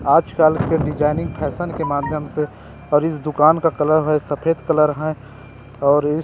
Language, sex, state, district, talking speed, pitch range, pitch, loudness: Chhattisgarhi, male, Chhattisgarh, Rajnandgaon, 190 wpm, 145-155 Hz, 150 Hz, -19 LUFS